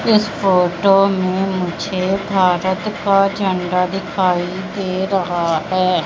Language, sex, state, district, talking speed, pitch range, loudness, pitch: Hindi, female, Madhya Pradesh, Katni, 110 wpm, 180-195 Hz, -17 LUFS, 190 Hz